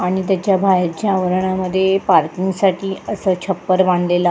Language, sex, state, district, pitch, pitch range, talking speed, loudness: Marathi, female, Maharashtra, Sindhudurg, 185 Hz, 180-195 Hz, 125 wpm, -17 LUFS